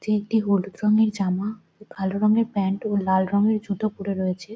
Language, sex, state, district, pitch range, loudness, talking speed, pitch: Bengali, female, West Bengal, Jhargram, 195-215 Hz, -23 LUFS, 195 wpm, 205 Hz